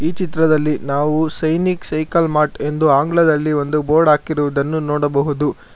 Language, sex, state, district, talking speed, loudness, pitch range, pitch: Kannada, male, Karnataka, Bangalore, 125 wpm, -17 LUFS, 145-160 Hz, 150 Hz